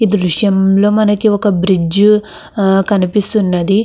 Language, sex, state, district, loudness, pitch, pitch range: Telugu, female, Andhra Pradesh, Krishna, -12 LUFS, 200 Hz, 190-210 Hz